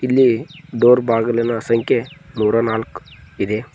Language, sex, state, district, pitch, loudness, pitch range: Kannada, male, Karnataka, Koppal, 115 Hz, -17 LUFS, 110-125 Hz